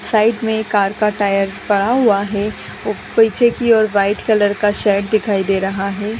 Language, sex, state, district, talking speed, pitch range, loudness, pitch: Hindi, female, Bihar, Gopalganj, 220 wpm, 200-220 Hz, -16 LUFS, 210 Hz